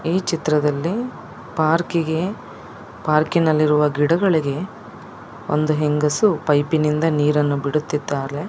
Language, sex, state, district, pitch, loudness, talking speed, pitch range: Kannada, male, Karnataka, Dakshina Kannada, 155 Hz, -20 LUFS, 100 wpm, 150-170 Hz